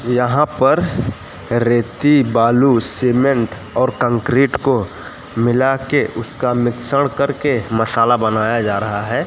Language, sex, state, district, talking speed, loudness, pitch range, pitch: Hindi, male, Gujarat, Gandhinagar, 115 wpm, -16 LUFS, 115-135 Hz, 120 Hz